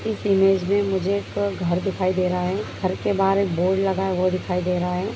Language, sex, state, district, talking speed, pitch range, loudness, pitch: Hindi, female, Bihar, Begusarai, 255 wpm, 180-195 Hz, -22 LUFS, 190 Hz